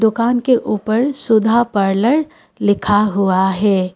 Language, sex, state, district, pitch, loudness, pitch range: Hindi, female, Assam, Kamrup Metropolitan, 215 Hz, -15 LUFS, 200-240 Hz